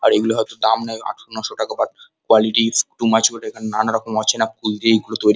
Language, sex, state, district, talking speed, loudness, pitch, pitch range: Bengali, male, West Bengal, Kolkata, 215 wpm, -19 LUFS, 110 Hz, 110-115 Hz